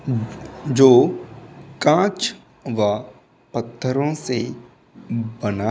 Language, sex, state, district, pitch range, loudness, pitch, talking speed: Hindi, male, Uttar Pradesh, Muzaffarnagar, 110-130 Hz, -20 LUFS, 120 Hz, 75 wpm